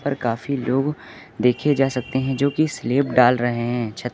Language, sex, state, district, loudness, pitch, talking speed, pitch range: Hindi, male, Uttar Pradesh, Lucknow, -21 LUFS, 130 Hz, 200 wpm, 120-140 Hz